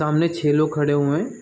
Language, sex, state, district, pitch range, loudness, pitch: Hindi, male, Chhattisgarh, Raigarh, 145-165 Hz, -20 LUFS, 150 Hz